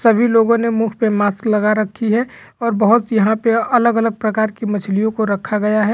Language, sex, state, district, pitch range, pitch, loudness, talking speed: Hindi, male, Chhattisgarh, Sukma, 210-230 Hz, 220 Hz, -16 LUFS, 210 wpm